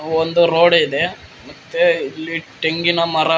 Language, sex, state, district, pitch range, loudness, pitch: Kannada, male, Karnataka, Koppal, 160-175 Hz, -16 LUFS, 165 Hz